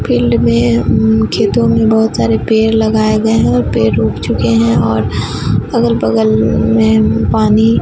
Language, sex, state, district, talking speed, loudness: Hindi, female, Bihar, Katihar, 155 wpm, -12 LUFS